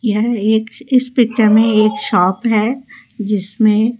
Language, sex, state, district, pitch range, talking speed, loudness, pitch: Hindi, female, Rajasthan, Jaipur, 210-240 Hz, 135 wpm, -14 LUFS, 220 Hz